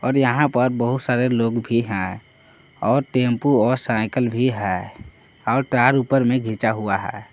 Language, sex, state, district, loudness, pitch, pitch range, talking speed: Hindi, male, Jharkhand, Palamu, -20 LUFS, 125 Hz, 110-130 Hz, 165 wpm